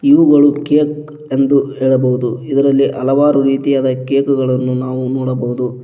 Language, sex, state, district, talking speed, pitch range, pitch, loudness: Kannada, male, Karnataka, Koppal, 115 wpm, 130-145 Hz, 135 Hz, -14 LUFS